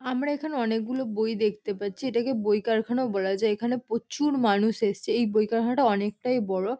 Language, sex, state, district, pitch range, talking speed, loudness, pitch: Bengali, female, West Bengal, North 24 Parganas, 210-250 Hz, 175 wpm, -26 LUFS, 225 Hz